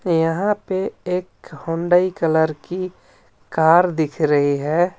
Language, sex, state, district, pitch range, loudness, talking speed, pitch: Hindi, male, Jharkhand, Ranchi, 160-180 Hz, -19 LUFS, 120 wpm, 170 Hz